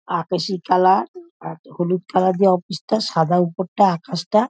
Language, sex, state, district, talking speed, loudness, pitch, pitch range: Bengali, female, West Bengal, Dakshin Dinajpur, 185 wpm, -19 LUFS, 185 Hz, 175-200 Hz